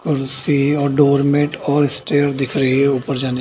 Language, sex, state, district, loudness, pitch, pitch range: Hindi, male, Bihar, Darbhanga, -17 LUFS, 140 Hz, 135-145 Hz